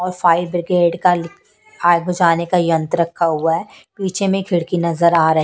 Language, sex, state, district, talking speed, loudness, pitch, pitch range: Hindi, female, Punjab, Pathankot, 200 wpm, -17 LUFS, 175 Hz, 170-180 Hz